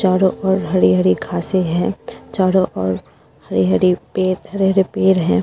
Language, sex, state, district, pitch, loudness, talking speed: Hindi, female, Bihar, Purnia, 185 Hz, -17 LUFS, 135 wpm